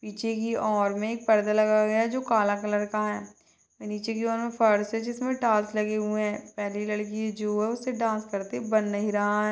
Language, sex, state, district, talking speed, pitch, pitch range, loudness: Hindi, female, Chhattisgarh, Bastar, 235 wpm, 215 Hz, 210-225 Hz, -27 LUFS